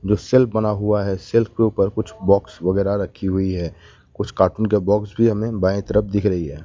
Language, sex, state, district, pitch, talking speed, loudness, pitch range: Hindi, male, West Bengal, Alipurduar, 105 Hz, 225 wpm, -20 LUFS, 95-110 Hz